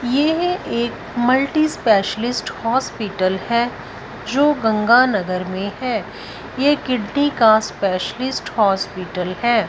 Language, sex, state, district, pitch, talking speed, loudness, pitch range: Hindi, female, Punjab, Fazilka, 235 Hz, 105 wpm, -19 LUFS, 200-260 Hz